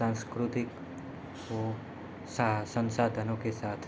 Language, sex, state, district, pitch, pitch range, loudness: Hindi, male, Bihar, Gopalganj, 115 Hz, 110-120 Hz, -34 LUFS